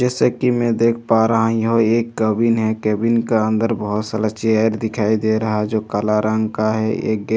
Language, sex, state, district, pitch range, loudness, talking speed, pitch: Hindi, male, Bihar, Katihar, 110-115 Hz, -18 LUFS, 235 wpm, 110 Hz